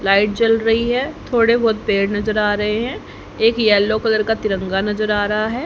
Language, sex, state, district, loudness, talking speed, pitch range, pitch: Hindi, female, Haryana, Jhajjar, -17 LUFS, 210 wpm, 205-225 Hz, 215 Hz